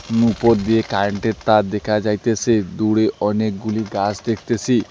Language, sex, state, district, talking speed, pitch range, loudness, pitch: Bengali, male, West Bengal, Alipurduar, 135 wpm, 105-115 Hz, -19 LUFS, 110 Hz